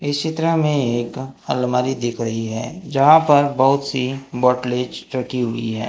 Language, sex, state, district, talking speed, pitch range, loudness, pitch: Hindi, male, Maharashtra, Gondia, 165 wpm, 120-145 Hz, -19 LUFS, 130 Hz